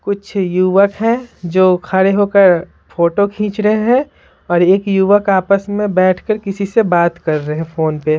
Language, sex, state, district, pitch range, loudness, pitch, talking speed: Hindi, female, Bihar, Patna, 175-205 Hz, -14 LUFS, 195 Hz, 175 wpm